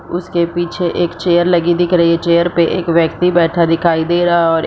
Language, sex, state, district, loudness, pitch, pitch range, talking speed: Hindi, female, Jharkhand, Sahebganj, -14 LUFS, 170 Hz, 170-175 Hz, 245 wpm